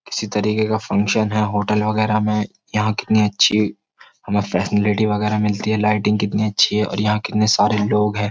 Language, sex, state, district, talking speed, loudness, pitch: Hindi, male, Uttar Pradesh, Jyotiba Phule Nagar, 190 wpm, -18 LUFS, 105 Hz